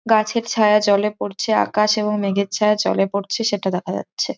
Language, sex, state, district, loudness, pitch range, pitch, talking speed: Bengali, female, West Bengal, Jhargram, -19 LUFS, 200-215 Hz, 210 Hz, 180 wpm